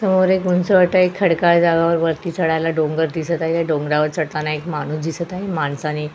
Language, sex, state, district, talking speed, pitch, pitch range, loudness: Marathi, female, Goa, North and South Goa, 205 wpm, 165 Hz, 155-180 Hz, -18 LUFS